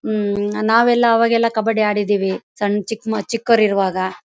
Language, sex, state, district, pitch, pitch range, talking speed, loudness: Kannada, female, Karnataka, Bellary, 215 Hz, 205-230 Hz, 140 wpm, -17 LUFS